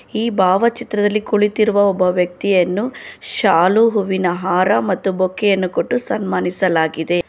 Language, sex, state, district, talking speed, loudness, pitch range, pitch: Kannada, female, Karnataka, Bangalore, 115 wpm, -16 LUFS, 180-210 Hz, 190 Hz